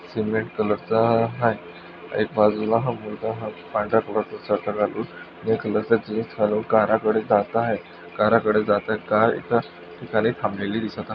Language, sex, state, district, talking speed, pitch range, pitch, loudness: Marathi, male, Maharashtra, Nagpur, 155 wpm, 105-110 Hz, 110 Hz, -23 LUFS